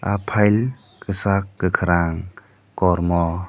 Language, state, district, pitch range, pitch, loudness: Kokborok, Tripura, Dhalai, 85-105 Hz, 95 Hz, -20 LUFS